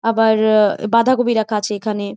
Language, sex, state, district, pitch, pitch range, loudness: Bengali, female, West Bengal, Jhargram, 220 Hz, 210-230 Hz, -16 LUFS